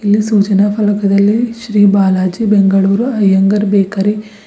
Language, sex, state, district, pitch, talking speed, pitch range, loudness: Kannada, female, Karnataka, Bidar, 205 Hz, 120 wpm, 195-210 Hz, -12 LUFS